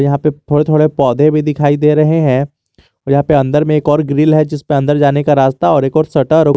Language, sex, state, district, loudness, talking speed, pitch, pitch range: Hindi, male, Jharkhand, Garhwa, -12 LUFS, 255 wpm, 145 Hz, 140-155 Hz